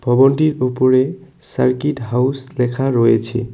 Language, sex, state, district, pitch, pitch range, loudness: Bengali, male, West Bengal, Cooch Behar, 130 Hz, 125-135 Hz, -16 LUFS